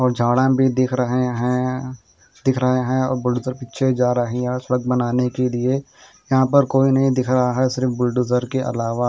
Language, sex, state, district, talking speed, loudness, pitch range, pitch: Hindi, male, Haryana, Charkhi Dadri, 200 wpm, -19 LUFS, 125-130 Hz, 125 Hz